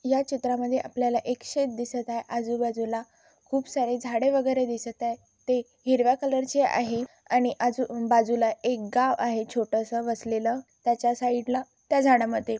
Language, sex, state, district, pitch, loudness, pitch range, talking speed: Marathi, female, Maharashtra, Chandrapur, 245 Hz, -26 LUFS, 235-260 Hz, 155 wpm